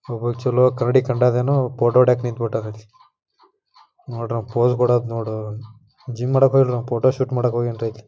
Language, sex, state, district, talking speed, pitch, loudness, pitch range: Kannada, male, Karnataka, Dharwad, 155 wpm, 120 Hz, -19 LUFS, 115-125 Hz